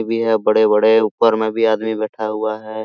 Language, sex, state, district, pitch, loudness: Hindi, male, Jharkhand, Sahebganj, 110 Hz, -16 LUFS